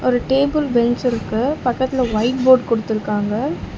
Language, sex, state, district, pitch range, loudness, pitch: Tamil, female, Tamil Nadu, Chennai, 230-260 Hz, -18 LUFS, 245 Hz